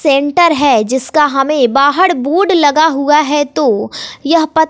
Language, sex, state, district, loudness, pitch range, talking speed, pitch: Hindi, female, Bihar, West Champaran, -11 LUFS, 280-320 Hz, 140 wpm, 295 Hz